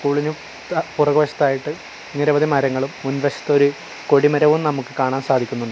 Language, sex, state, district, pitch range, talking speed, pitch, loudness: Malayalam, male, Kerala, Kasaragod, 135-150 Hz, 115 wpm, 145 Hz, -19 LUFS